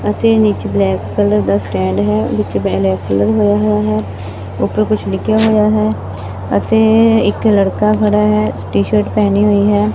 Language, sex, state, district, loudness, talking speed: Punjabi, female, Punjab, Fazilka, -13 LUFS, 175 wpm